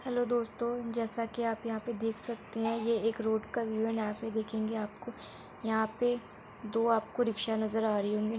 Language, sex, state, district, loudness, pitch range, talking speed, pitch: Hindi, female, Uttar Pradesh, Etah, -33 LUFS, 220-235 Hz, 215 wpm, 225 Hz